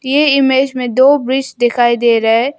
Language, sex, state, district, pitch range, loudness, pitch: Hindi, female, Arunachal Pradesh, Lower Dibang Valley, 240-270 Hz, -12 LUFS, 260 Hz